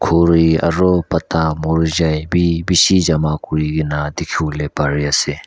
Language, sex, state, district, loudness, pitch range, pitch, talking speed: Nagamese, male, Nagaland, Kohima, -16 LUFS, 75-85 Hz, 80 Hz, 120 wpm